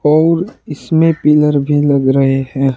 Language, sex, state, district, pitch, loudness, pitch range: Hindi, male, Uttar Pradesh, Saharanpur, 150 Hz, -12 LUFS, 135-160 Hz